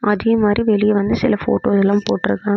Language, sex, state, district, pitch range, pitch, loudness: Tamil, female, Tamil Nadu, Namakkal, 205-215 Hz, 210 Hz, -16 LUFS